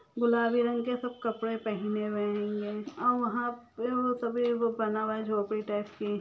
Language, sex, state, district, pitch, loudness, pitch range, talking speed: Magahi, female, Bihar, Lakhisarai, 225 Hz, -31 LUFS, 210-240 Hz, 175 wpm